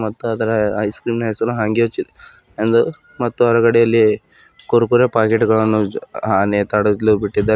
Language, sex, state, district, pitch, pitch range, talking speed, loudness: Kannada, male, Karnataka, Bidar, 110 Hz, 105-115 Hz, 135 wpm, -16 LUFS